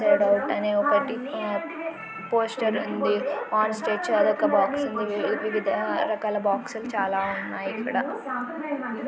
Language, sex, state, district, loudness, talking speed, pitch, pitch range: Telugu, female, Telangana, Nalgonda, -25 LUFS, 80 wpm, 225 Hz, 210-285 Hz